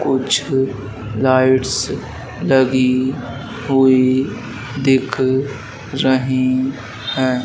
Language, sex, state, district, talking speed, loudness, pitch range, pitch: Hindi, male, Madhya Pradesh, Dhar, 55 wpm, -17 LUFS, 125-135 Hz, 130 Hz